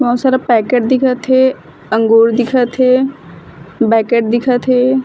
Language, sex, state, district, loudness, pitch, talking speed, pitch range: Chhattisgarhi, female, Chhattisgarh, Bilaspur, -12 LUFS, 250 Hz, 130 wpm, 230-260 Hz